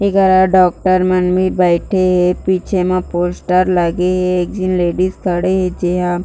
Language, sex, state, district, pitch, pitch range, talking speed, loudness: Chhattisgarhi, female, Chhattisgarh, Jashpur, 185 Hz, 180-185 Hz, 165 wpm, -14 LUFS